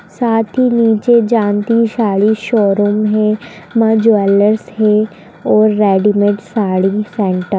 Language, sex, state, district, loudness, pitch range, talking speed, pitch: Hindi, female, Bihar, Sitamarhi, -13 LUFS, 205-225 Hz, 105 wpm, 210 Hz